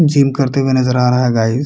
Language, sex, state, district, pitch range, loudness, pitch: Hindi, male, Bihar, Kishanganj, 125-140 Hz, -14 LUFS, 130 Hz